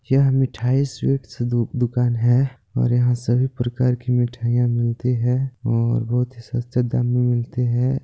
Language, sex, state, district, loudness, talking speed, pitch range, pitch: Hindi, male, Chhattisgarh, Balrampur, -21 LUFS, 165 wpm, 120-125 Hz, 125 Hz